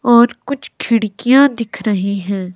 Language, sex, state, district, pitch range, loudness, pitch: Hindi, female, Himachal Pradesh, Shimla, 200-245 Hz, -15 LUFS, 230 Hz